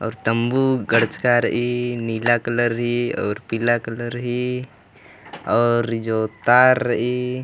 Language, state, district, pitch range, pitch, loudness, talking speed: Kurukh, Chhattisgarh, Jashpur, 115-125 Hz, 120 Hz, -20 LUFS, 130 wpm